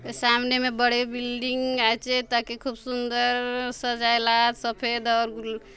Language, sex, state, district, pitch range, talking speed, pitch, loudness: Halbi, female, Chhattisgarh, Bastar, 235-250 Hz, 125 wpm, 240 Hz, -24 LUFS